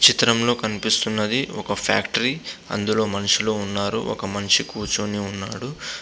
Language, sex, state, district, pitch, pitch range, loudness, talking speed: Telugu, male, Andhra Pradesh, Visakhapatnam, 105 Hz, 100-115 Hz, -22 LUFS, 110 wpm